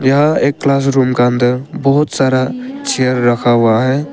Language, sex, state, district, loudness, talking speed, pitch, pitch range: Hindi, male, Arunachal Pradesh, Papum Pare, -13 LUFS, 160 wpm, 130 Hz, 125-145 Hz